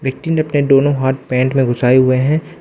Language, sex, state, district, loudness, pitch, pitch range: Hindi, male, Arunachal Pradesh, Lower Dibang Valley, -14 LUFS, 135 Hz, 130-145 Hz